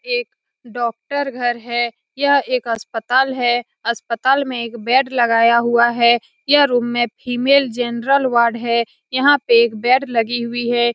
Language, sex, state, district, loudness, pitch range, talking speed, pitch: Hindi, female, Bihar, Saran, -17 LUFS, 235-265 Hz, 165 wpm, 240 Hz